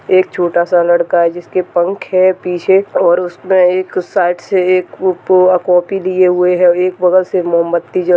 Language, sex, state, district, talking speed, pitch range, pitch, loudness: Hindi, male, Bihar, Purnia, 170 wpm, 175-185 Hz, 180 Hz, -12 LUFS